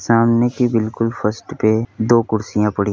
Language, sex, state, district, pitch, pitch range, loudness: Hindi, male, Uttar Pradesh, Hamirpur, 115 Hz, 110-120 Hz, -17 LUFS